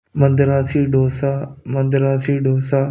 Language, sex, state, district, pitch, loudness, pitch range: Hindi, male, Punjab, Pathankot, 135 Hz, -17 LUFS, 135-140 Hz